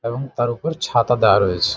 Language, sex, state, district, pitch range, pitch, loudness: Bengali, male, West Bengal, Jhargram, 110-130 Hz, 120 Hz, -18 LUFS